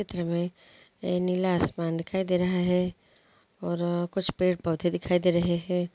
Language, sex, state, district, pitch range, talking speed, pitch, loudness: Hindi, female, Andhra Pradesh, Guntur, 175-180 Hz, 170 wpm, 180 Hz, -28 LUFS